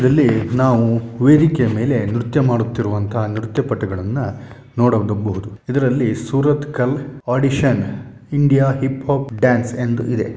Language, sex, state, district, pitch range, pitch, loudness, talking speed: Kannada, male, Karnataka, Shimoga, 115-135 Hz, 125 Hz, -18 LUFS, 100 wpm